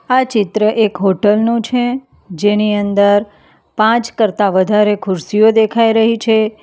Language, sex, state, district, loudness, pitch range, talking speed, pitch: Gujarati, female, Gujarat, Valsad, -13 LUFS, 205-225 Hz, 135 wpm, 215 Hz